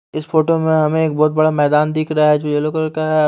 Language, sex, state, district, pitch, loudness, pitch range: Hindi, male, Haryana, Rohtak, 155 Hz, -16 LUFS, 150-155 Hz